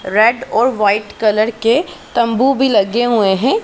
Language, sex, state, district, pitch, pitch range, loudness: Hindi, female, Punjab, Pathankot, 230 Hz, 210-245 Hz, -14 LUFS